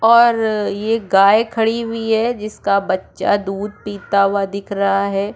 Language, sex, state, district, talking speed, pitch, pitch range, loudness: Hindi, female, Chhattisgarh, Korba, 155 wpm, 205 Hz, 200-225 Hz, -17 LUFS